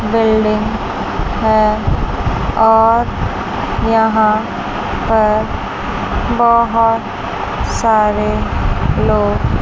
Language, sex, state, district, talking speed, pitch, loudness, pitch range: Hindi, female, Chandigarh, Chandigarh, 50 wpm, 220 Hz, -15 LUFS, 210-225 Hz